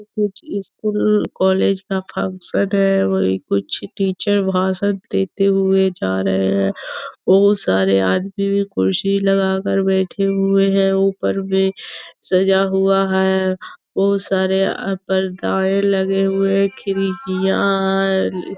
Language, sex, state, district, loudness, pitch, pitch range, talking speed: Hindi, female, Bihar, Gaya, -18 LUFS, 195 Hz, 190-195 Hz, 130 wpm